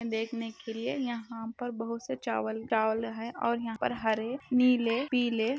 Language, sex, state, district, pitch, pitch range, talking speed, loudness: Hindi, female, Rajasthan, Nagaur, 230 Hz, 225-240 Hz, 180 wpm, -31 LUFS